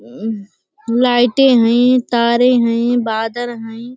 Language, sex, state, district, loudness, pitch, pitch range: Hindi, female, Uttar Pradesh, Budaun, -14 LUFS, 240 Hz, 230-250 Hz